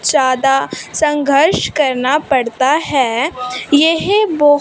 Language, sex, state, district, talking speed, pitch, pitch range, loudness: Hindi, female, Punjab, Fazilka, 90 wpm, 280 Hz, 255-300 Hz, -14 LUFS